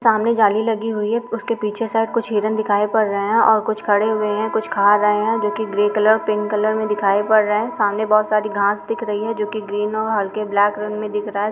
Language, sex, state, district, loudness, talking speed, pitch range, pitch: Hindi, female, Uttar Pradesh, Muzaffarnagar, -19 LUFS, 270 wpm, 210-220 Hz, 210 Hz